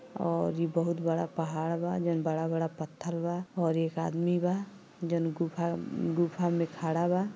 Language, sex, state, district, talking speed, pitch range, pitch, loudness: Bhojpuri, female, Uttar Pradesh, Gorakhpur, 170 wpm, 165-175 Hz, 170 Hz, -31 LUFS